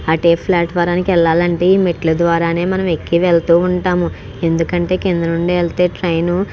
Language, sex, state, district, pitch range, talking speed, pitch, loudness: Telugu, female, Andhra Pradesh, Krishna, 170-180 Hz, 185 wpm, 175 Hz, -15 LUFS